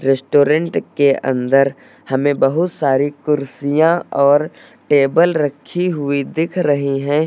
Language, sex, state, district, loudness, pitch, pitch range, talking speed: Hindi, male, Uttar Pradesh, Lucknow, -16 LUFS, 145 Hz, 140-160 Hz, 115 wpm